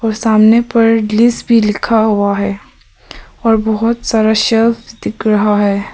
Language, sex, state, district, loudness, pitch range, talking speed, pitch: Hindi, female, Arunachal Pradesh, Papum Pare, -12 LUFS, 210-230 Hz, 150 wpm, 220 Hz